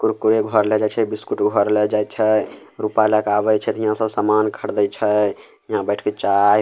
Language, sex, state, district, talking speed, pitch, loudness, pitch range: Maithili, male, Bihar, Samastipur, 235 wpm, 105 Hz, -19 LUFS, 105-110 Hz